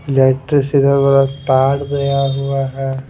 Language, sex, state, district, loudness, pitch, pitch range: Hindi, male, Bihar, Patna, -15 LUFS, 135 Hz, 135-140 Hz